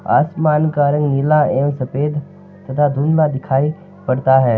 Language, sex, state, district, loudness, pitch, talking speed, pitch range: Marwari, male, Rajasthan, Nagaur, -16 LUFS, 145 Hz, 145 wpm, 135-155 Hz